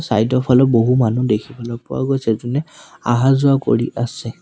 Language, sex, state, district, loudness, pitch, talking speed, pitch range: Assamese, male, Assam, Sonitpur, -17 LUFS, 125 Hz, 175 wpm, 115-135 Hz